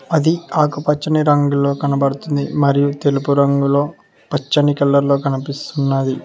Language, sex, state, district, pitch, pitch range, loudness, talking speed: Telugu, male, Telangana, Mahabubabad, 140 Hz, 140-145 Hz, -17 LUFS, 105 wpm